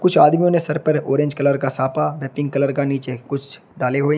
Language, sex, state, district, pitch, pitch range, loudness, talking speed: Hindi, male, Uttar Pradesh, Shamli, 140 Hz, 135-150 Hz, -19 LUFS, 260 wpm